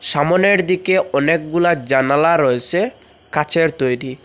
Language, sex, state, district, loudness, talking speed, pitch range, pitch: Bengali, male, Assam, Hailakandi, -16 LUFS, 100 wpm, 135-175 Hz, 165 Hz